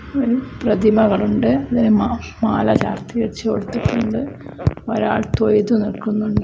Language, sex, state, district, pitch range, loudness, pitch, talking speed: Malayalam, female, Kerala, Kozhikode, 210-245 Hz, -18 LUFS, 220 Hz, 95 wpm